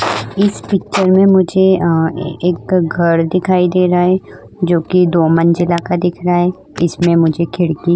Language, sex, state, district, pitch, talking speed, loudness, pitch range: Hindi, female, Uttar Pradesh, Budaun, 175 Hz, 165 wpm, -13 LUFS, 170-185 Hz